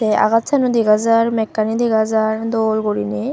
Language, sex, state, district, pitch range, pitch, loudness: Chakma, female, Tripura, Unakoti, 215-230 Hz, 220 Hz, -17 LUFS